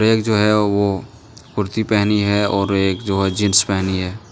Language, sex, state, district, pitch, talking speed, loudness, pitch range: Hindi, male, Jharkhand, Deoghar, 105 Hz, 195 wpm, -17 LUFS, 95-110 Hz